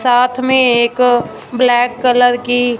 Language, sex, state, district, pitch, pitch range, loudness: Hindi, female, Punjab, Fazilka, 245 Hz, 245-250 Hz, -13 LUFS